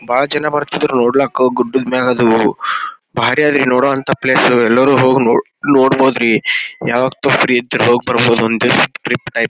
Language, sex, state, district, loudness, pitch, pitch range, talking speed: Kannada, male, Karnataka, Gulbarga, -13 LUFS, 130 Hz, 120-135 Hz, 165 wpm